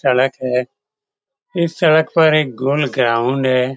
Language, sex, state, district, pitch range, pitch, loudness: Hindi, male, Bihar, Saran, 125-155 Hz, 135 Hz, -16 LUFS